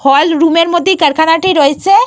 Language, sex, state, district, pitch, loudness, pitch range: Bengali, female, Jharkhand, Jamtara, 325 Hz, -10 LUFS, 295-350 Hz